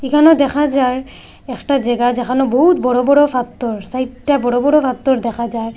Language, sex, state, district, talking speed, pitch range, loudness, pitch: Bengali, female, Assam, Hailakandi, 165 wpm, 245-280 Hz, -15 LUFS, 255 Hz